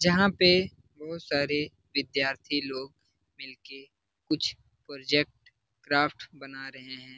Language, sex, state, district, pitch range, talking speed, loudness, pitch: Hindi, male, Bihar, Lakhisarai, 130-150 Hz, 115 wpm, -27 LUFS, 135 Hz